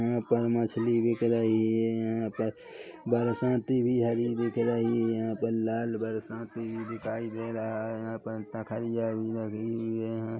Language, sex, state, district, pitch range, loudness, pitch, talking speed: Hindi, male, Chhattisgarh, Korba, 110-115 Hz, -30 LUFS, 115 Hz, 185 wpm